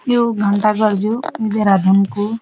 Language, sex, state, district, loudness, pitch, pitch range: Garhwali, female, Uttarakhand, Uttarkashi, -16 LUFS, 215 Hz, 200-225 Hz